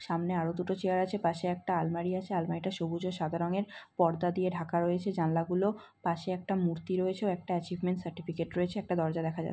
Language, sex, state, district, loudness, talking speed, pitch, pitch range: Bengali, female, West Bengal, North 24 Parganas, -33 LUFS, 200 wpm, 180 Hz, 170-185 Hz